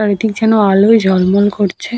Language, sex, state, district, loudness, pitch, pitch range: Bengali, female, West Bengal, Paschim Medinipur, -12 LUFS, 205 Hz, 200-220 Hz